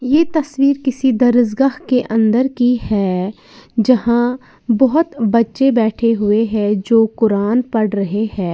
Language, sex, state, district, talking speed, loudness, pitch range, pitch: Hindi, female, Uttar Pradesh, Lalitpur, 135 wpm, -15 LUFS, 215-260 Hz, 235 Hz